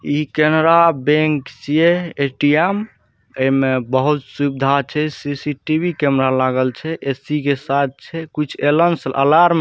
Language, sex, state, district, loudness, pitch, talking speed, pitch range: Hindi, male, Bihar, Saharsa, -17 LUFS, 145 Hz, 130 wpm, 135-155 Hz